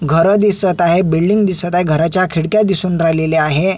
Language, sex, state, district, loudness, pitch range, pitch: Marathi, male, Maharashtra, Solapur, -13 LUFS, 165-190 Hz, 175 Hz